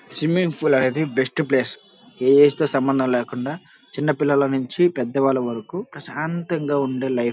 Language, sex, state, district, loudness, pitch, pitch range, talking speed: Telugu, male, Andhra Pradesh, Krishna, -21 LUFS, 140 Hz, 130-155 Hz, 140 wpm